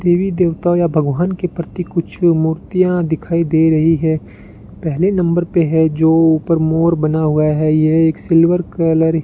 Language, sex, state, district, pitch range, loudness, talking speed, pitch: Hindi, male, Rajasthan, Bikaner, 160-175 Hz, -15 LUFS, 170 wpm, 165 Hz